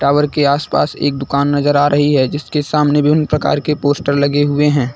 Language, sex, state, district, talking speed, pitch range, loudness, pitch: Hindi, male, Uttar Pradesh, Lucknow, 220 wpm, 140-150 Hz, -14 LUFS, 145 Hz